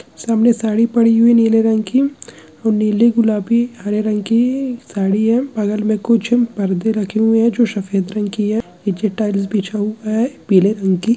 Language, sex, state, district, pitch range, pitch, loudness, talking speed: Hindi, male, Chhattisgarh, Kabirdham, 205-235 Hz, 220 Hz, -16 LUFS, 195 wpm